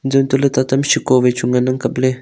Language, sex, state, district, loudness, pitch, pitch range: Wancho, male, Arunachal Pradesh, Longding, -15 LUFS, 130 Hz, 125-135 Hz